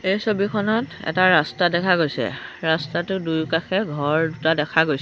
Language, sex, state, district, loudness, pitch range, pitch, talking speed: Assamese, female, Assam, Sonitpur, -21 LUFS, 160-190 Hz, 170 Hz, 145 wpm